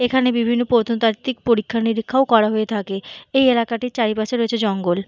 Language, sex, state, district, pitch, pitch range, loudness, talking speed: Bengali, female, Jharkhand, Jamtara, 230 Hz, 215-245 Hz, -19 LUFS, 165 wpm